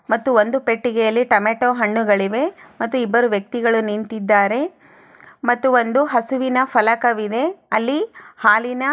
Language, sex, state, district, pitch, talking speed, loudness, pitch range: Kannada, female, Karnataka, Chamarajanagar, 240 Hz, 105 wpm, -18 LUFS, 220-260 Hz